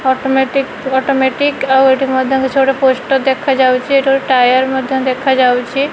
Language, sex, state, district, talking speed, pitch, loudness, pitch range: Odia, female, Odisha, Malkangiri, 160 wpm, 265 Hz, -13 LUFS, 260-270 Hz